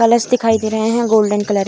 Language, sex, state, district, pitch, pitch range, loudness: Hindi, female, Bihar, Kishanganj, 220 Hz, 210-230 Hz, -15 LUFS